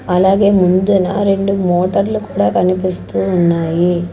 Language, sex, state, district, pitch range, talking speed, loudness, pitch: Telugu, female, Andhra Pradesh, Sri Satya Sai, 175-195 Hz, 100 wpm, -14 LUFS, 185 Hz